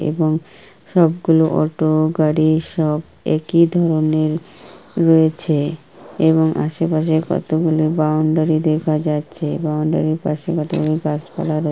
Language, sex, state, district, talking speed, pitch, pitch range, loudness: Bengali, female, West Bengal, Kolkata, 100 wpm, 160 Hz, 155-165 Hz, -18 LUFS